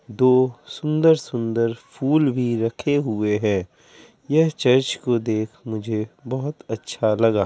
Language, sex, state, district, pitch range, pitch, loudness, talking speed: Hindi, male, Bihar, Kishanganj, 110-135 Hz, 120 Hz, -21 LUFS, 130 wpm